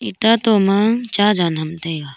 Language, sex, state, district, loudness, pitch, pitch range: Wancho, female, Arunachal Pradesh, Longding, -16 LUFS, 200 Hz, 165-220 Hz